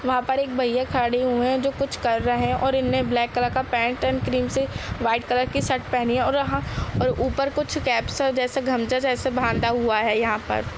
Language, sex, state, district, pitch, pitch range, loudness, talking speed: Hindi, female, Uttar Pradesh, Jalaun, 250 Hz, 230-260 Hz, -23 LUFS, 235 wpm